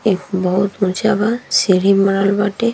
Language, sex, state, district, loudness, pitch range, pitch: Bhojpuri, female, Bihar, East Champaran, -16 LUFS, 190-215 Hz, 200 Hz